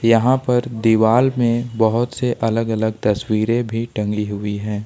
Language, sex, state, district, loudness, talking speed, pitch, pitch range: Hindi, male, Jharkhand, Ranchi, -18 LUFS, 160 wpm, 115 Hz, 110-120 Hz